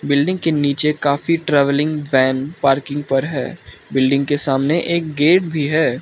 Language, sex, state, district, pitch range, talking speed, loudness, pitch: Hindi, male, Arunachal Pradesh, Lower Dibang Valley, 140-155 Hz, 160 wpm, -17 LUFS, 145 Hz